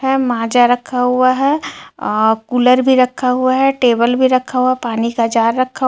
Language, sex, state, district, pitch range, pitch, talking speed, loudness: Hindi, female, Jharkhand, Ranchi, 235-260 Hz, 250 Hz, 205 wpm, -14 LUFS